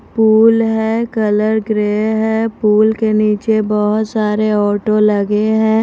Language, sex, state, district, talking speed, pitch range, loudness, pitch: Hindi, female, Maharashtra, Mumbai Suburban, 135 wpm, 210-220 Hz, -14 LUFS, 215 Hz